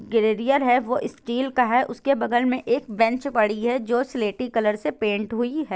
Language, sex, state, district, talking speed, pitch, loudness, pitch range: Hindi, female, Bihar, Saran, 210 wpm, 240 Hz, -23 LUFS, 225-255 Hz